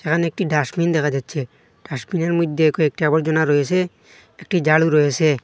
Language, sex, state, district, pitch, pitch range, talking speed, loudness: Bengali, male, Assam, Hailakandi, 160 Hz, 150-170 Hz, 145 wpm, -19 LUFS